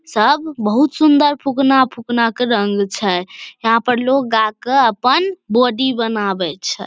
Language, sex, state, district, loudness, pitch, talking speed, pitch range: Maithili, female, Bihar, Samastipur, -16 LUFS, 245 Hz, 130 wpm, 215-275 Hz